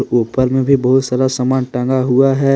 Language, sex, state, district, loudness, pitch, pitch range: Hindi, male, Jharkhand, Deoghar, -14 LUFS, 130 Hz, 125-135 Hz